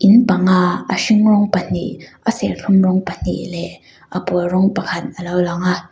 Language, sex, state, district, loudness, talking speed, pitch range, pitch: Mizo, female, Mizoram, Aizawl, -17 LUFS, 180 wpm, 180-205 Hz, 185 Hz